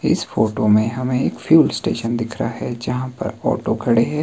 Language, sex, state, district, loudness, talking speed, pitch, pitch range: Hindi, male, Himachal Pradesh, Shimla, -19 LUFS, 210 wpm, 120 Hz, 110-130 Hz